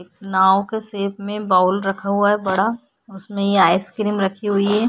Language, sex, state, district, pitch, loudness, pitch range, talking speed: Hindi, female, Bihar, Vaishali, 200 Hz, -19 LUFS, 190-205 Hz, 195 wpm